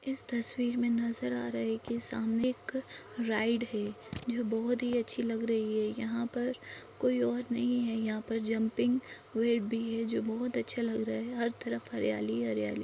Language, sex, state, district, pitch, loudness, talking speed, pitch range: Hindi, female, Maharashtra, Nagpur, 230 Hz, -33 LUFS, 185 wpm, 215-240 Hz